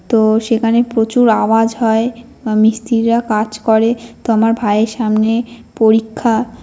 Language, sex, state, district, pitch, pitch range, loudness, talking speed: Bengali, female, West Bengal, North 24 Parganas, 225 Hz, 220-235 Hz, -14 LUFS, 135 wpm